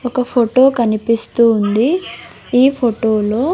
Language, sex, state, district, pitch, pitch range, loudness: Telugu, female, Andhra Pradesh, Sri Satya Sai, 240 Hz, 225-255 Hz, -14 LUFS